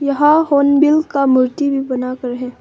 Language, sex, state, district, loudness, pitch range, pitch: Hindi, female, Arunachal Pradesh, Longding, -14 LUFS, 255-295 Hz, 280 Hz